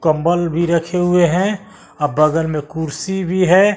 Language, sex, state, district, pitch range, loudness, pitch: Hindi, male, Bihar, West Champaran, 160-185 Hz, -17 LUFS, 170 Hz